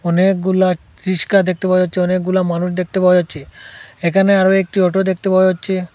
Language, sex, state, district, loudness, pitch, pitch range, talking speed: Bengali, male, Assam, Hailakandi, -15 LUFS, 185 Hz, 180-190 Hz, 170 wpm